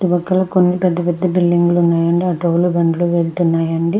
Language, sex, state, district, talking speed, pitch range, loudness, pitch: Telugu, female, Andhra Pradesh, Krishna, 210 wpm, 170-180 Hz, -15 LUFS, 175 Hz